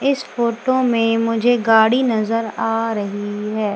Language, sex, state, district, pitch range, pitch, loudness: Hindi, female, Madhya Pradesh, Umaria, 220-240 Hz, 225 Hz, -18 LUFS